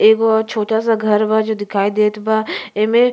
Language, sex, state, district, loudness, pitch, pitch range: Bhojpuri, female, Uttar Pradesh, Gorakhpur, -16 LUFS, 220 Hz, 210-220 Hz